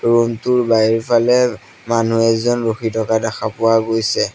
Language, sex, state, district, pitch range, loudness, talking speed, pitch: Assamese, male, Assam, Sonitpur, 110-115 Hz, -16 LUFS, 140 wpm, 115 Hz